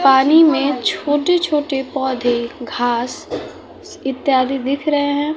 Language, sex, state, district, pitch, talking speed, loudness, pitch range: Hindi, female, Bihar, West Champaran, 270 Hz, 110 wpm, -17 LUFS, 260-295 Hz